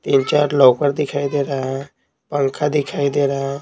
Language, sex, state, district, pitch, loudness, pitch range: Hindi, male, Bihar, Patna, 140 Hz, -18 LUFS, 135-145 Hz